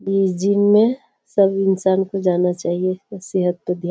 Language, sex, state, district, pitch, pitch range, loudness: Hindi, female, Bihar, Kishanganj, 190 Hz, 180-195 Hz, -18 LUFS